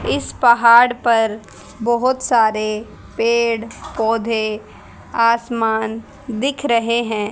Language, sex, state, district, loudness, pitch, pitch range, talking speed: Hindi, female, Haryana, Charkhi Dadri, -17 LUFS, 230 Hz, 220-235 Hz, 90 wpm